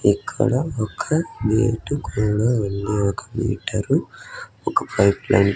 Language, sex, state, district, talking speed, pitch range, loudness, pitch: Telugu, male, Andhra Pradesh, Sri Satya Sai, 120 wpm, 100-115 Hz, -21 LUFS, 105 Hz